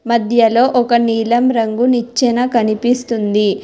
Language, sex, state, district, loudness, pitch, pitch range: Telugu, female, Telangana, Hyderabad, -14 LUFS, 235 Hz, 225-245 Hz